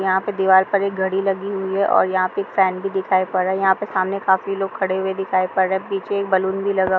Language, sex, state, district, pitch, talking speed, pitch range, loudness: Hindi, female, Bihar, Kishanganj, 190 Hz, 290 wpm, 190-195 Hz, -20 LUFS